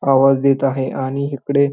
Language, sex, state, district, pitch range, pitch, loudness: Marathi, male, Maharashtra, Pune, 135-140 Hz, 135 Hz, -17 LUFS